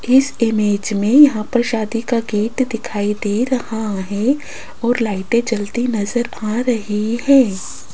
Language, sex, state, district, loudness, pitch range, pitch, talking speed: Hindi, female, Rajasthan, Jaipur, -17 LUFS, 210-245 Hz, 230 Hz, 145 wpm